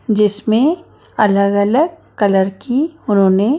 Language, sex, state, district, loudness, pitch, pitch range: Hindi, female, Maharashtra, Mumbai Suburban, -15 LUFS, 215 Hz, 200-280 Hz